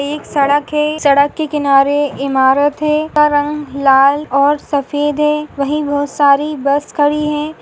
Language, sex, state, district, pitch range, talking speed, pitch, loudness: Hindi, female, Goa, North and South Goa, 280-300 Hz, 155 wpm, 290 Hz, -14 LUFS